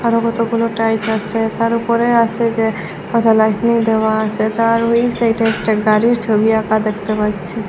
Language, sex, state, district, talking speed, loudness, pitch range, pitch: Bengali, female, Assam, Hailakandi, 165 wpm, -15 LUFS, 220-230 Hz, 225 Hz